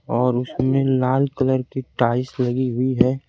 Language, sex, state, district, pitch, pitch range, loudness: Hindi, male, Bihar, Kaimur, 130 Hz, 125-130 Hz, -21 LUFS